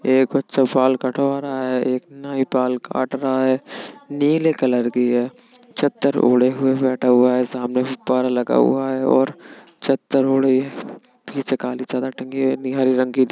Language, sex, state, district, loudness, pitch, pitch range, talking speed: Hindi, male, Uttar Pradesh, Budaun, -19 LUFS, 130 Hz, 125-135 Hz, 205 wpm